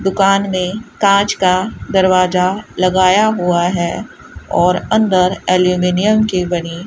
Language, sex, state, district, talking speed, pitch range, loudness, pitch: Hindi, male, Rajasthan, Bikaner, 120 wpm, 180-200 Hz, -14 LUFS, 185 Hz